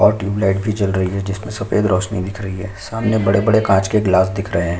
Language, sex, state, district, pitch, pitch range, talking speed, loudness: Hindi, male, Chhattisgarh, Sukma, 100 Hz, 95-105 Hz, 250 wpm, -18 LUFS